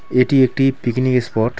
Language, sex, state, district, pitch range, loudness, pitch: Bengali, male, West Bengal, Alipurduar, 120-135 Hz, -17 LUFS, 125 Hz